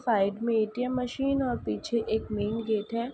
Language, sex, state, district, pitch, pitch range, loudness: Hindi, female, Uttar Pradesh, Ghazipur, 230 Hz, 215-250 Hz, -29 LUFS